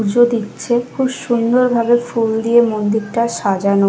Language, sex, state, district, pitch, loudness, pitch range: Bengali, female, Odisha, Nuapada, 235 Hz, -16 LUFS, 215-240 Hz